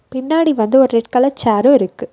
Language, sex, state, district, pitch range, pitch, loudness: Tamil, female, Tamil Nadu, Nilgiris, 230-275 Hz, 260 Hz, -14 LUFS